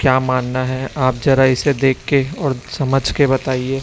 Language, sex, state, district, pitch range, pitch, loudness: Hindi, male, Chhattisgarh, Raipur, 130-135 Hz, 130 Hz, -17 LUFS